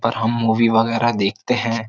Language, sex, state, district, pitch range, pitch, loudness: Hindi, male, Uttar Pradesh, Jyotiba Phule Nagar, 110-115 Hz, 115 Hz, -18 LUFS